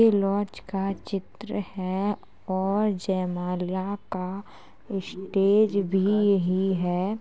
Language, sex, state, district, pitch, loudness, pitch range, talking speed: Hindi, female, Uttar Pradesh, Jalaun, 195 Hz, -26 LUFS, 185-200 Hz, 110 wpm